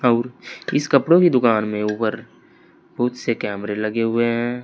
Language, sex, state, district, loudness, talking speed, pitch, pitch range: Hindi, male, Uttar Pradesh, Saharanpur, -20 LUFS, 170 wpm, 115 Hz, 110-125 Hz